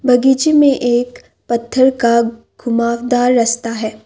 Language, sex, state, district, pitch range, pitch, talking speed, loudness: Hindi, female, Assam, Kamrup Metropolitan, 235-255 Hz, 240 Hz, 120 wpm, -14 LUFS